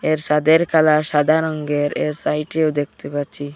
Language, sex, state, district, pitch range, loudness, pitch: Bengali, male, Assam, Hailakandi, 145-155 Hz, -18 LUFS, 150 Hz